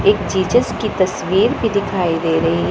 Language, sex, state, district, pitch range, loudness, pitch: Hindi, female, Punjab, Pathankot, 170-205 Hz, -17 LUFS, 190 Hz